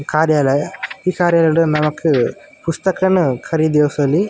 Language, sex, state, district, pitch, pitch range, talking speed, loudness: Tulu, male, Karnataka, Dakshina Kannada, 155 Hz, 150-175 Hz, 85 wpm, -16 LUFS